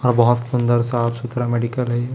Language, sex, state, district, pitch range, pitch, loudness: Hindi, male, Chhattisgarh, Raipur, 120-125 Hz, 120 Hz, -19 LUFS